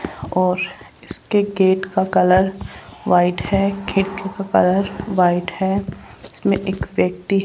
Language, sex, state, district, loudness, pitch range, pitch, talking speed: Hindi, female, Rajasthan, Jaipur, -19 LUFS, 180-195 Hz, 190 Hz, 130 wpm